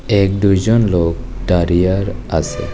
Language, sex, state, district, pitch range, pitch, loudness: Bengali, male, Tripura, West Tripura, 85-100 Hz, 95 Hz, -15 LUFS